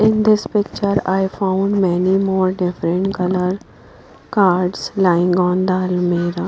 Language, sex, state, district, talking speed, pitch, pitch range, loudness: English, female, Punjab, Pathankot, 130 wpm, 185 Hz, 180-195 Hz, -17 LUFS